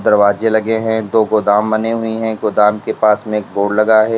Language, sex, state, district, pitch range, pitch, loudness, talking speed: Hindi, male, Uttar Pradesh, Lalitpur, 105-110 Hz, 110 Hz, -15 LUFS, 230 wpm